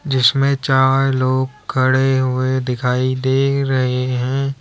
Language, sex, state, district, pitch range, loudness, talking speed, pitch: Hindi, male, Uttar Pradesh, Lalitpur, 130-135 Hz, -17 LUFS, 115 wpm, 130 Hz